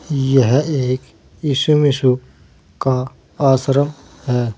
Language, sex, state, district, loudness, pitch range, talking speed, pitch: Hindi, male, Uttar Pradesh, Saharanpur, -17 LUFS, 130-145 Hz, 90 wpm, 135 Hz